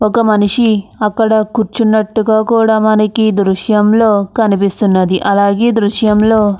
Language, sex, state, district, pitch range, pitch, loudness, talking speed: Telugu, female, Andhra Pradesh, Anantapur, 205-220 Hz, 215 Hz, -12 LUFS, 110 wpm